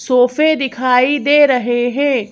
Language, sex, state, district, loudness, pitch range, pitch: Hindi, female, Madhya Pradesh, Bhopal, -14 LUFS, 250-285 Hz, 260 Hz